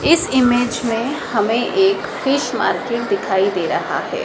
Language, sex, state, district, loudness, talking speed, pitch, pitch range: Hindi, female, Madhya Pradesh, Dhar, -18 LUFS, 155 wpm, 240 Hz, 210-275 Hz